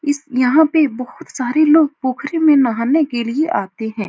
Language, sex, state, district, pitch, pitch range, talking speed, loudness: Hindi, female, Uttar Pradesh, Etah, 275 Hz, 240-310 Hz, 190 wpm, -16 LUFS